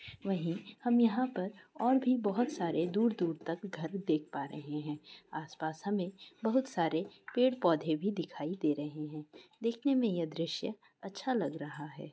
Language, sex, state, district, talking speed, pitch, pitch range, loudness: Hindi, female, Bihar, Madhepura, 170 wpm, 185 Hz, 160-230 Hz, -34 LUFS